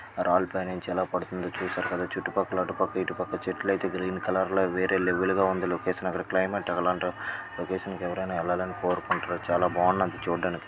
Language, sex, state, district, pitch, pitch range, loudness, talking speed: Telugu, male, Andhra Pradesh, Guntur, 95 Hz, 90-95 Hz, -28 LUFS, 170 wpm